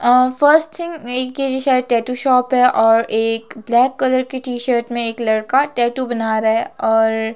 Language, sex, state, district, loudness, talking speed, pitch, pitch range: Hindi, female, Himachal Pradesh, Shimla, -16 LUFS, 190 wpm, 250 Hz, 225-260 Hz